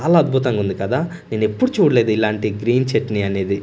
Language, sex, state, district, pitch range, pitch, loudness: Telugu, male, Andhra Pradesh, Manyam, 105-145 Hz, 110 Hz, -18 LUFS